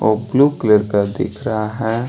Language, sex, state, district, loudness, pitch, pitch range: Hindi, male, Jharkhand, Deoghar, -17 LUFS, 110 Hz, 105-115 Hz